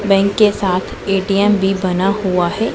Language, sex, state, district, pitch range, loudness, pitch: Hindi, female, Punjab, Pathankot, 190-205 Hz, -15 LUFS, 195 Hz